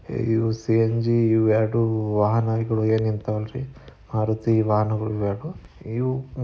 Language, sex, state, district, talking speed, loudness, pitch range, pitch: Kannada, male, Karnataka, Dharwad, 105 wpm, -23 LUFS, 110-115 Hz, 110 Hz